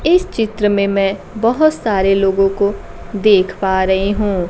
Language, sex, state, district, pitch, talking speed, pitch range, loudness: Hindi, female, Bihar, Kaimur, 200 Hz, 160 wpm, 195-215 Hz, -15 LUFS